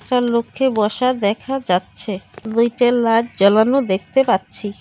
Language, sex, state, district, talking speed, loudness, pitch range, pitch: Bengali, female, West Bengal, Cooch Behar, 125 wpm, -17 LUFS, 205-250 Hz, 230 Hz